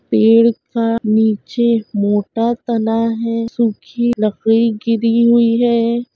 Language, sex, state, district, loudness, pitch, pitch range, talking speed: Hindi, female, Uttar Pradesh, Budaun, -15 LUFS, 230 Hz, 220-235 Hz, 105 wpm